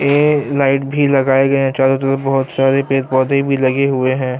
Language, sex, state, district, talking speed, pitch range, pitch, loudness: Urdu, male, Bihar, Saharsa, 220 wpm, 135-140 Hz, 135 Hz, -15 LUFS